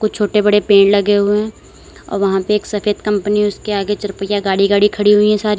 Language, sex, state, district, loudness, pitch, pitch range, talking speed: Hindi, female, Uttar Pradesh, Lalitpur, -14 LUFS, 205 Hz, 200-210 Hz, 235 wpm